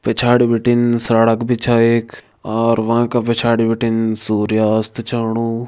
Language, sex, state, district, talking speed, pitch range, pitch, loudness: Kumaoni, male, Uttarakhand, Tehri Garhwal, 135 wpm, 115-120 Hz, 115 Hz, -16 LUFS